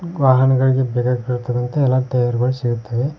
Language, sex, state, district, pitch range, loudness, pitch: Kannada, male, Karnataka, Koppal, 125-130 Hz, -18 LUFS, 125 Hz